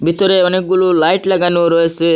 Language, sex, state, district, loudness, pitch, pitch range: Bengali, male, Assam, Hailakandi, -13 LUFS, 175 Hz, 165-185 Hz